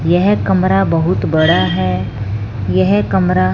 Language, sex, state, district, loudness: Hindi, male, Punjab, Fazilka, -14 LUFS